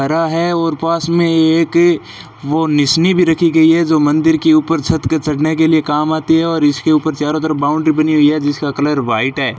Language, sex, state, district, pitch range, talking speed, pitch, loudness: Hindi, male, Rajasthan, Bikaner, 150-165 Hz, 225 wpm, 155 Hz, -13 LUFS